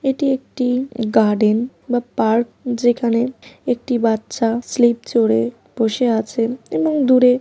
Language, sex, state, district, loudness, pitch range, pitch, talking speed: Bengali, female, West Bengal, Paschim Medinipur, -18 LUFS, 230-255 Hz, 240 Hz, 115 wpm